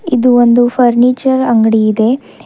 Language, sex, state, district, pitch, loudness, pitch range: Kannada, female, Karnataka, Bidar, 245 Hz, -10 LUFS, 235-255 Hz